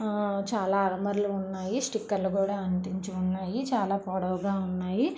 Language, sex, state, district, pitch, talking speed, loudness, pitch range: Telugu, female, Andhra Pradesh, Visakhapatnam, 195 Hz, 130 wpm, -29 LUFS, 190-205 Hz